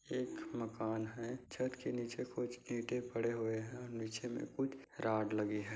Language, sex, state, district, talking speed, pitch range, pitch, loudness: Hindi, male, Bihar, Kishanganj, 185 wpm, 110-125 Hz, 120 Hz, -41 LUFS